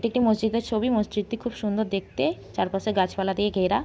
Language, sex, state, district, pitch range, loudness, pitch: Bengali, female, West Bengal, Jhargram, 195-230 Hz, -26 LUFS, 215 Hz